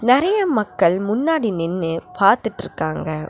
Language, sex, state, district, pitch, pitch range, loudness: Tamil, female, Tamil Nadu, Nilgiris, 200 Hz, 165-245 Hz, -19 LUFS